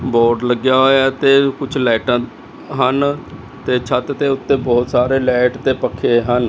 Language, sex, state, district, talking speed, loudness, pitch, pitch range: Punjabi, male, Chandigarh, Chandigarh, 165 wpm, -15 LUFS, 130 Hz, 125-135 Hz